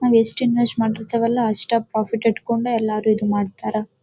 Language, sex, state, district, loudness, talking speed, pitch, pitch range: Kannada, female, Karnataka, Dharwad, -20 LUFS, 150 wpm, 225 Hz, 215-235 Hz